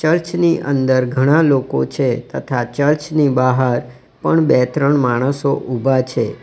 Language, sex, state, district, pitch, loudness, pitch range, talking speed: Gujarati, male, Gujarat, Valsad, 135 Hz, -16 LUFS, 125-150 Hz, 130 wpm